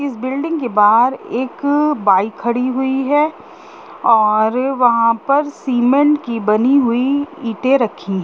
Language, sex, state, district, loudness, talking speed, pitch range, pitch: Hindi, female, Bihar, Gopalganj, -15 LUFS, 130 wpm, 230-280 Hz, 255 Hz